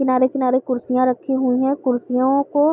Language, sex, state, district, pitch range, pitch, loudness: Hindi, female, Uttar Pradesh, Gorakhpur, 255-270 Hz, 255 Hz, -19 LUFS